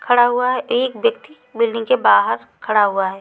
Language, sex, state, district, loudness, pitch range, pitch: Hindi, female, Chhattisgarh, Raipur, -17 LUFS, 200-250 Hz, 240 Hz